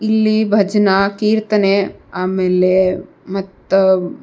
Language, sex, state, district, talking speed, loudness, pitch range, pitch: Kannada, female, Karnataka, Bijapur, 85 wpm, -15 LUFS, 185-210 Hz, 195 Hz